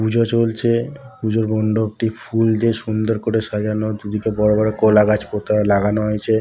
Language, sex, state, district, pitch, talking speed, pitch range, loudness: Bengali, male, West Bengal, Dakshin Dinajpur, 110 Hz, 150 wpm, 105-115 Hz, -18 LUFS